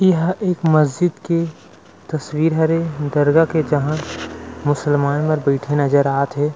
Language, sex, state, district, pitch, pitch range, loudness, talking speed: Chhattisgarhi, male, Chhattisgarh, Rajnandgaon, 150 Hz, 145-165 Hz, -18 LUFS, 135 wpm